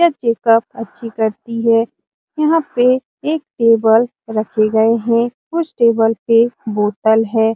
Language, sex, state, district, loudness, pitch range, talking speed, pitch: Hindi, female, Bihar, Lakhisarai, -15 LUFS, 225-245 Hz, 135 wpm, 230 Hz